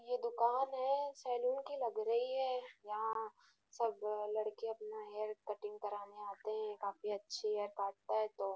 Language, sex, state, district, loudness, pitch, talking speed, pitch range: Hindi, female, Bihar, Gopalganj, -40 LUFS, 215 Hz, 170 wpm, 210-245 Hz